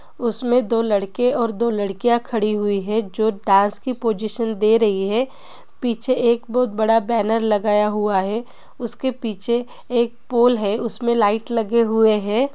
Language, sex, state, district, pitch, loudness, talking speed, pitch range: Hindi, female, Bihar, Gopalganj, 225 Hz, -20 LUFS, 165 wpm, 210-240 Hz